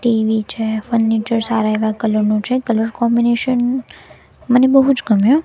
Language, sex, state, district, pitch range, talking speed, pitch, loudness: Gujarati, female, Gujarat, Gandhinagar, 220-245 Hz, 145 wpm, 230 Hz, -16 LUFS